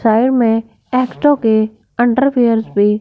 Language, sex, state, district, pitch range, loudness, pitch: Hindi, female, Punjab, Fazilka, 220-255 Hz, -14 LUFS, 230 Hz